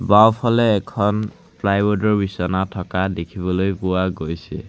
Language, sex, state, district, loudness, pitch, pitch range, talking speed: Assamese, male, Assam, Sonitpur, -20 LUFS, 100 Hz, 90-105 Hz, 115 wpm